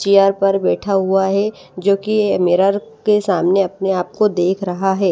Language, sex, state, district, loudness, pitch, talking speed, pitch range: Hindi, female, Odisha, Malkangiri, -16 LUFS, 195 Hz, 185 wpm, 185-200 Hz